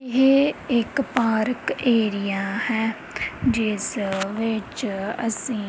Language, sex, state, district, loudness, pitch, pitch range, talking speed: Punjabi, female, Punjab, Kapurthala, -23 LUFS, 225 Hz, 210-245 Hz, 85 wpm